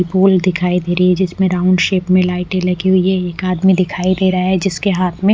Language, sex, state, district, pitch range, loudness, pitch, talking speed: Hindi, female, Odisha, Malkangiri, 180-190 Hz, -15 LUFS, 185 Hz, 225 wpm